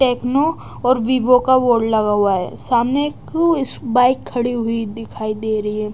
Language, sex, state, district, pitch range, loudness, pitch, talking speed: Hindi, female, Odisha, Nuapada, 220-260 Hz, -18 LUFS, 245 Hz, 180 wpm